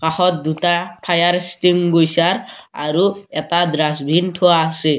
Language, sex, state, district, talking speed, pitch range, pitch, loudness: Assamese, male, Assam, Kamrup Metropolitan, 110 wpm, 160-180 Hz, 175 Hz, -16 LUFS